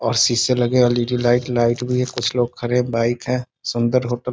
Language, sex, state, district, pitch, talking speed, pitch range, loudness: Hindi, male, Bihar, Sitamarhi, 120 Hz, 250 wpm, 120-125 Hz, -19 LUFS